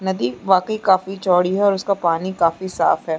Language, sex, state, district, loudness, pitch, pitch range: Hindi, female, Chhattisgarh, Bastar, -19 LUFS, 185 Hz, 170-195 Hz